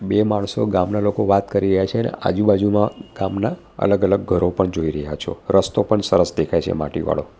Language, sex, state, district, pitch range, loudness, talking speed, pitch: Gujarati, male, Gujarat, Valsad, 95-105 Hz, -19 LUFS, 195 wpm, 100 Hz